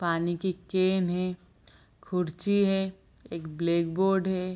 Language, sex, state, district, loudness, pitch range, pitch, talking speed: Hindi, female, Bihar, Gopalganj, -28 LUFS, 170-190 Hz, 180 Hz, 120 wpm